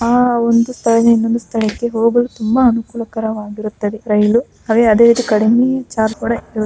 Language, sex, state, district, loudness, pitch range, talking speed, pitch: Kannada, male, Karnataka, Bijapur, -15 LUFS, 220-235 Hz, 145 wpm, 230 Hz